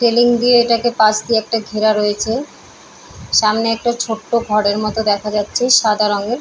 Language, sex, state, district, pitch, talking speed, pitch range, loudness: Bengali, female, West Bengal, Paschim Medinipur, 220 Hz, 160 wpm, 215-235 Hz, -15 LUFS